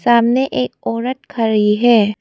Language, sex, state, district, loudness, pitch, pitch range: Hindi, female, Arunachal Pradesh, Papum Pare, -16 LUFS, 235 Hz, 225-255 Hz